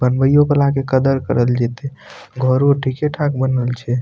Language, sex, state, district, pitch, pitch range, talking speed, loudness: Maithili, male, Bihar, Madhepura, 130 Hz, 125-140 Hz, 150 wpm, -16 LUFS